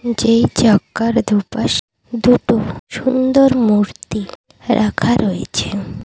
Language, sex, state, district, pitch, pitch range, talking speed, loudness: Bengali, female, Odisha, Malkangiri, 230 Hz, 210-250 Hz, 80 wpm, -16 LUFS